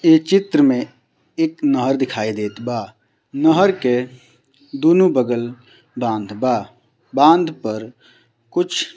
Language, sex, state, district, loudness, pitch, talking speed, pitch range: Bhojpuri, male, Bihar, Gopalganj, -18 LUFS, 135 Hz, 120 wpm, 120-190 Hz